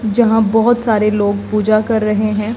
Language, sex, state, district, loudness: Hindi, male, Haryana, Jhajjar, -14 LUFS